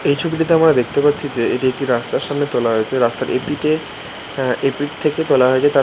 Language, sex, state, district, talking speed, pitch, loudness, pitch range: Bengali, male, West Bengal, Malda, 215 wpm, 140 Hz, -17 LUFS, 130-150 Hz